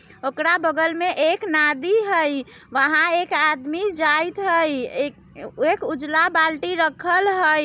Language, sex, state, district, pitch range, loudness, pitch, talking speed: Bajjika, female, Bihar, Vaishali, 300-345 Hz, -20 LUFS, 320 Hz, 135 wpm